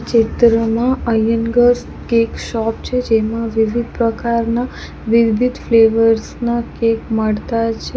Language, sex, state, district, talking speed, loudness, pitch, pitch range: Gujarati, female, Gujarat, Valsad, 105 wpm, -16 LUFS, 230 Hz, 225-235 Hz